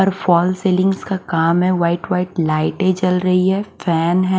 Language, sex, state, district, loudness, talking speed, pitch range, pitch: Hindi, female, Haryana, Charkhi Dadri, -17 LUFS, 190 wpm, 170-185 Hz, 180 Hz